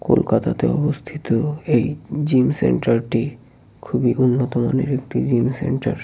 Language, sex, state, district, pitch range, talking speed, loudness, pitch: Bengali, male, West Bengal, Kolkata, 120-145 Hz, 120 wpm, -20 LUFS, 130 Hz